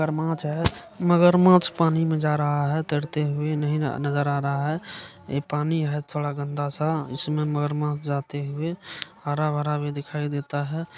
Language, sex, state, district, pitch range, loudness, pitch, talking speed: Maithili, male, Bihar, Supaul, 145-160 Hz, -25 LUFS, 150 Hz, 160 wpm